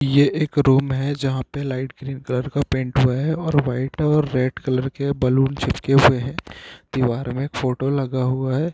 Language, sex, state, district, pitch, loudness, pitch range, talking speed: Hindi, male, Chhattisgarh, Bilaspur, 135 Hz, -21 LUFS, 130-140 Hz, 200 wpm